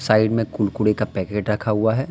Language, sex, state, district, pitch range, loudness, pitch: Hindi, male, Jharkhand, Deoghar, 105-110 Hz, -21 LUFS, 110 Hz